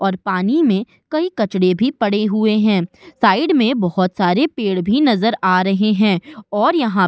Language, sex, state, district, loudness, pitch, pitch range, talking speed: Hindi, female, Uttar Pradesh, Budaun, -16 LUFS, 210 Hz, 190-240 Hz, 185 wpm